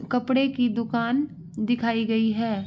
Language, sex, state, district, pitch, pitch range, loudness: Hindi, female, Uttar Pradesh, Varanasi, 230 Hz, 225-245 Hz, -25 LUFS